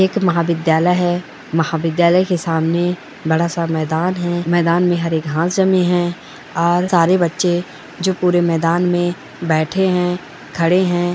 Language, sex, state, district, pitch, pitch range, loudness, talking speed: Hindi, female, Bihar, Bhagalpur, 175 Hz, 165-180 Hz, -17 LUFS, 145 wpm